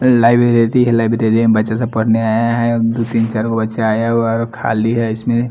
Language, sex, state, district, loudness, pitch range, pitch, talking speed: Hindi, male, Bihar, Patna, -15 LUFS, 110-115 Hz, 115 Hz, 195 wpm